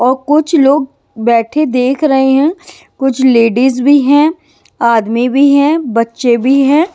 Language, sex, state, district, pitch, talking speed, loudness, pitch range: Hindi, female, Maharashtra, Washim, 270 Hz, 145 wpm, -11 LUFS, 245-300 Hz